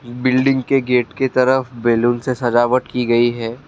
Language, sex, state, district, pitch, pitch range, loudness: Hindi, male, Assam, Kamrup Metropolitan, 125 Hz, 120-130 Hz, -17 LUFS